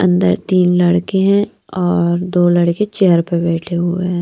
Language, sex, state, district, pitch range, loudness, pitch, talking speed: Hindi, female, Haryana, Charkhi Dadri, 170-185 Hz, -15 LUFS, 175 Hz, 170 wpm